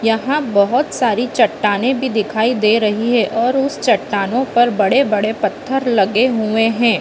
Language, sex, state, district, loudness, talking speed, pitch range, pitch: Hindi, female, Chhattisgarh, Bilaspur, -16 LUFS, 165 wpm, 215-250 Hz, 225 Hz